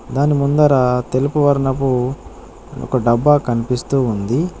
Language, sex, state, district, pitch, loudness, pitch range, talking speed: Telugu, male, Telangana, Adilabad, 135 Hz, -16 LUFS, 125-145 Hz, 105 wpm